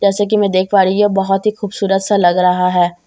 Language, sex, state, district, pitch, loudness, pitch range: Hindi, female, Bihar, Katihar, 195 Hz, -14 LUFS, 180-205 Hz